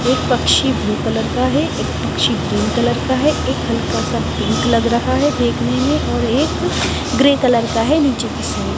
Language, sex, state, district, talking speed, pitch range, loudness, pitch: Hindi, female, Himachal Pradesh, Shimla, 225 wpm, 240-280 Hz, -16 LUFS, 265 Hz